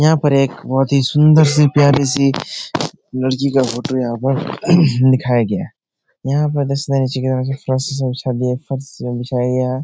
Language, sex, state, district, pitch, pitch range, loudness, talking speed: Hindi, male, Bihar, Supaul, 135 Hz, 130-140 Hz, -16 LUFS, 155 wpm